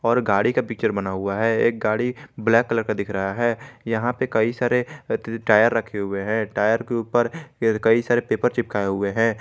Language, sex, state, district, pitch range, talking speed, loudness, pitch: Hindi, male, Jharkhand, Garhwa, 105-120 Hz, 205 wpm, -22 LUFS, 115 Hz